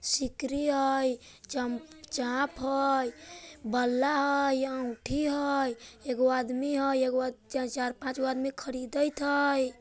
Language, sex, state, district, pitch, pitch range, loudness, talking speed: Bajjika, male, Bihar, Vaishali, 265 Hz, 255-280 Hz, -30 LUFS, 130 wpm